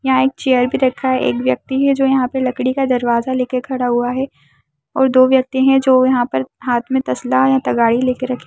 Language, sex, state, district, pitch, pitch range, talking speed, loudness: Hindi, female, Uttar Pradesh, Deoria, 255 Hz, 235-265 Hz, 240 wpm, -16 LUFS